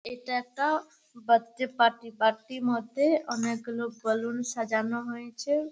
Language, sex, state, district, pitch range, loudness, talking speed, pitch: Bengali, female, West Bengal, Malda, 230-255 Hz, -29 LUFS, 135 wpm, 235 Hz